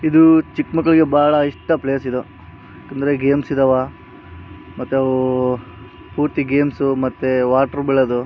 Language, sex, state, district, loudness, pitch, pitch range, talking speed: Kannada, male, Karnataka, Raichur, -17 LUFS, 135 Hz, 125-145 Hz, 130 wpm